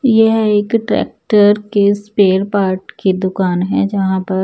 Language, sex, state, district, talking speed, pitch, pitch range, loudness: Hindi, male, Odisha, Nuapada, 150 wpm, 200 Hz, 190-210 Hz, -14 LUFS